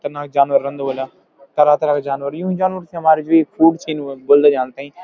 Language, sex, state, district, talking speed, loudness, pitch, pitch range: Garhwali, male, Uttarakhand, Uttarkashi, 190 wpm, -17 LUFS, 145 Hz, 140-165 Hz